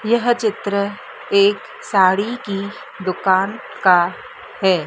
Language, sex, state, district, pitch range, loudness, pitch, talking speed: Hindi, female, Madhya Pradesh, Dhar, 190-220 Hz, -18 LUFS, 200 Hz, 100 wpm